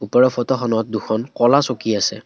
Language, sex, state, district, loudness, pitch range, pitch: Assamese, male, Assam, Kamrup Metropolitan, -18 LUFS, 110-130 Hz, 120 Hz